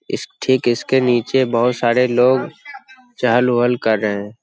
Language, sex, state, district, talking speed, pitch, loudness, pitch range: Hindi, male, Bihar, Jamui, 165 wpm, 125 Hz, -17 LUFS, 120-130 Hz